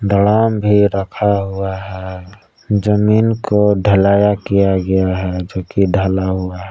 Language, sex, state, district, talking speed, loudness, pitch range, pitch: Hindi, male, Jharkhand, Palamu, 145 wpm, -15 LUFS, 95-105 Hz, 100 Hz